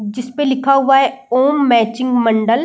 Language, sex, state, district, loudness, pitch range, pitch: Hindi, female, Bihar, Saran, -14 LUFS, 235-270 Hz, 255 Hz